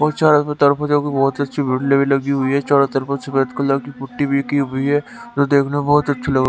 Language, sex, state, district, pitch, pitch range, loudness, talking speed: Hindi, male, Haryana, Rohtak, 140 Hz, 135-145 Hz, -17 LUFS, 260 wpm